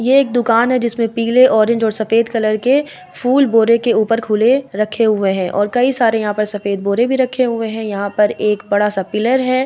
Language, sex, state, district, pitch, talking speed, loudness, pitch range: Hindi, female, Bihar, Vaishali, 225 Hz, 230 wpm, -15 LUFS, 210-245 Hz